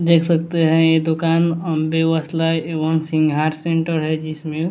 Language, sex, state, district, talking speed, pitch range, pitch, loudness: Hindi, male, Bihar, West Champaran, 155 wpm, 155-165 Hz, 160 Hz, -18 LUFS